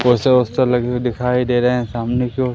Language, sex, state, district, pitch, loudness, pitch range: Hindi, male, Madhya Pradesh, Umaria, 125 Hz, -17 LUFS, 120-125 Hz